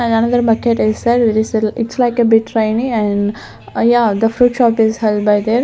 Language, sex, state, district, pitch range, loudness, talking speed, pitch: English, female, Chandigarh, Chandigarh, 215-235 Hz, -14 LUFS, 180 wpm, 225 Hz